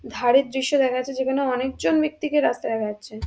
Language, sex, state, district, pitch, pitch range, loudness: Bengali, female, West Bengal, Dakshin Dinajpur, 265 Hz, 245-275 Hz, -22 LUFS